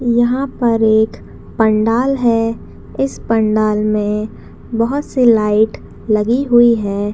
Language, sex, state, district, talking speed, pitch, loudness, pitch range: Hindi, female, Chhattisgarh, Raigarh, 115 wpm, 225 Hz, -15 LUFS, 215-240 Hz